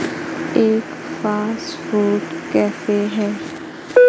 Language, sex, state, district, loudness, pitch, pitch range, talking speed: Hindi, female, Madhya Pradesh, Katni, -20 LUFS, 210 Hz, 205-220 Hz, 75 wpm